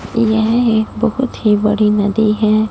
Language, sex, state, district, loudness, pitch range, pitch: Hindi, female, Punjab, Fazilka, -14 LUFS, 210-225 Hz, 220 Hz